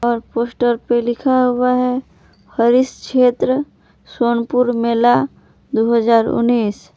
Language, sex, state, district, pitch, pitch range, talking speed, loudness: Hindi, female, Jharkhand, Palamu, 240 Hz, 235-250 Hz, 105 wpm, -16 LUFS